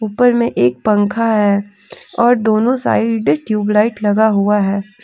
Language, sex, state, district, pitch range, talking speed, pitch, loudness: Hindi, female, Jharkhand, Deoghar, 205-225 Hz, 155 wpm, 215 Hz, -14 LUFS